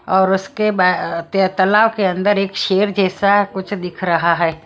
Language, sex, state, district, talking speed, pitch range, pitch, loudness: Hindi, female, Maharashtra, Mumbai Suburban, 165 wpm, 180-200 Hz, 190 Hz, -16 LUFS